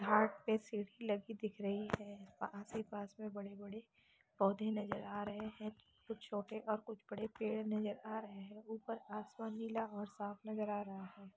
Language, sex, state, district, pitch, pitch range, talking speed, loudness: Hindi, female, Chhattisgarh, Raigarh, 210 Hz, 205-220 Hz, 200 wpm, -43 LUFS